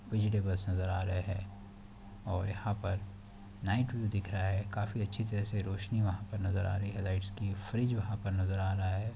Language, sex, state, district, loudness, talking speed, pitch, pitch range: Hindi, male, Chhattisgarh, Bastar, -35 LUFS, 215 wpm, 100 Hz, 95-105 Hz